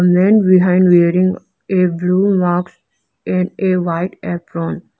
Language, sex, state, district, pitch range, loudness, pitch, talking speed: English, female, Arunachal Pradesh, Lower Dibang Valley, 170-185 Hz, -15 LUFS, 180 Hz, 120 wpm